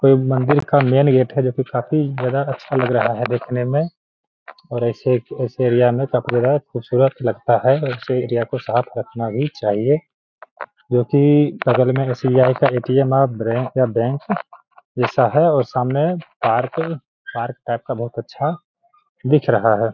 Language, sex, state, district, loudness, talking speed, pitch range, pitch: Hindi, male, Bihar, Gaya, -18 LUFS, 175 wpm, 120-140 Hz, 130 Hz